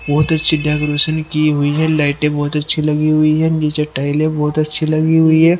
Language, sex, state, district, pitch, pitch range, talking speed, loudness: Hindi, male, Haryana, Rohtak, 155 Hz, 150-155 Hz, 205 wpm, -15 LUFS